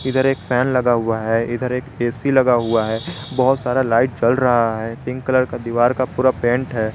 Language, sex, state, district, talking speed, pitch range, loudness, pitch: Hindi, male, Jharkhand, Garhwa, 225 wpm, 115-130 Hz, -18 LUFS, 125 Hz